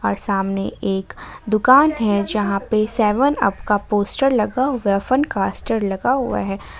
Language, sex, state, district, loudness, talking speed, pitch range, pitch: Hindi, female, Jharkhand, Ranchi, -19 LUFS, 150 wpm, 195-255 Hz, 210 Hz